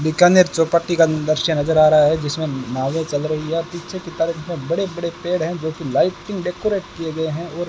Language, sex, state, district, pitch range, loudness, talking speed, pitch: Hindi, male, Rajasthan, Bikaner, 155-175 Hz, -19 LUFS, 225 wpm, 165 Hz